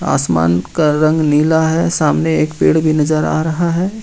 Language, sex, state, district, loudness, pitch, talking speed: Hindi, male, Jharkhand, Ranchi, -14 LUFS, 155 Hz, 195 wpm